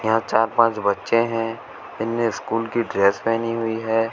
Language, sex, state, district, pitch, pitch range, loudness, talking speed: Hindi, male, Uttar Pradesh, Shamli, 115 Hz, 110-115 Hz, -21 LUFS, 175 wpm